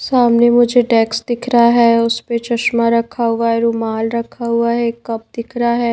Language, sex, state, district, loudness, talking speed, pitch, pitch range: Hindi, female, Haryana, Rohtak, -15 LUFS, 200 wpm, 235 Hz, 230-240 Hz